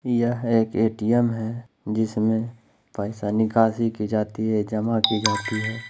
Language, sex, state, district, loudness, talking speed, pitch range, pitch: Hindi, male, Bihar, Lakhisarai, -23 LUFS, 140 wpm, 110-115 Hz, 110 Hz